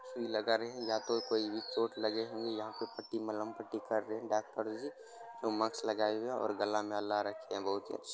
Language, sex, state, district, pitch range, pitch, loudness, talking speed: Hindi, male, Bihar, Supaul, 105-115 Hz, 110 Hz, -37 LUFS, 235 wpm